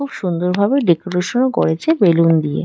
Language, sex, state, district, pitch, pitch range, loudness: Bengali, female, West Bengal, Dakshin Dinajpur, 180 Hz, 165-205 Hz, -16 LUFS